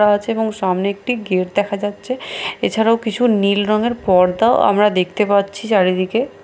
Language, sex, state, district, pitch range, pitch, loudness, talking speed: Bengali, female, Bihar, Katihar, 200-225 Hz, 205 Hz, -17 LUFS, 160 wpm